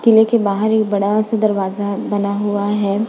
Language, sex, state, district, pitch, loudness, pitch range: Hindi, female, Uttar Pradesh, Budaun, 205 Hz, -17 LUFS, 200-215 Hz